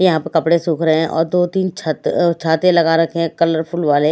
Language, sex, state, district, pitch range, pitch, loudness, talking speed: Hindi, female, Odisha, Malkangiri, 160-175 Hz, 165 Hz, -16 LUFS, 245 wpm